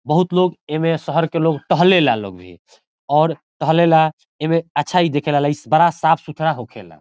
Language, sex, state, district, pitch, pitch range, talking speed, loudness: Bhojpuri, male, Bihar, Saran, 160 Hz, 145-165 Hz, 190 wpm, -17 LUFS